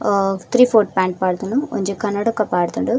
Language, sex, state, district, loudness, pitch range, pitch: Tulu, female, Karnataka, Dakshina Kannada, -18 LUFS, 190-230 Hz, 200 Hz